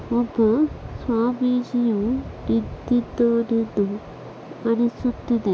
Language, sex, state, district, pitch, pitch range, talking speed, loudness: Kannada, female, Karnataka, Bellary, 235 Hz, 220-245 Hz, 55 wpm, -22 LUFS